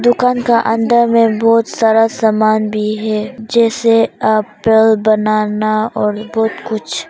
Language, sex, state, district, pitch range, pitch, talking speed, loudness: Hindi, female, Arunachal Pradesh, Papum Pare, 215-230 Hz, 220 Hz, 125 wpm, -13 LUFS